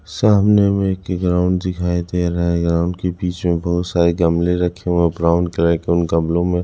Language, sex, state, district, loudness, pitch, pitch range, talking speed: Hindi, male, Punjab, Kapurthala, -17 LUFS, 90 Hz, 85-90 Hz, 215 wpm